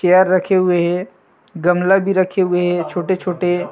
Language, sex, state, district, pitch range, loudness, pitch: Chhattisgarhi, male, Chhattisgarh, Rajnandgaon, 175-185 Hz, -16 LUFS, 180 Hz